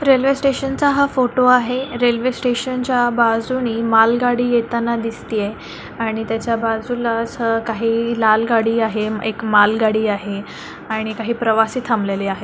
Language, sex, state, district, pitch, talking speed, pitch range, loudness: Marathi, female, Maharashtra, Chandrapur, 230 Hz, 145 wpm, 220-245 Hz, -18 LUFS